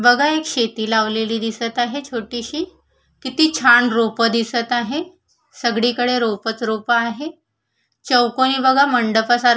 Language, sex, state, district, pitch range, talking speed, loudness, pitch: Marathi, female, Maharashtra, Solapur, 230-260 Hz, 120 wpm, -18 LUFS, 240 Hz